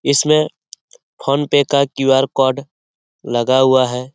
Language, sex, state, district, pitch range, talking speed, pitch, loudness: Hindi, male, Bihar, Lakhisarai, 130-140 Hz, 145 wpm, 135 Hz, -15 LUFS